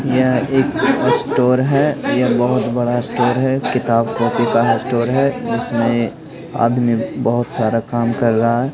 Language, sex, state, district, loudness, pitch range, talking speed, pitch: Hindi, male, Haryana, Rohtak, -17 LUFS, 115-130 Hz, 150 wpm, 120 Hz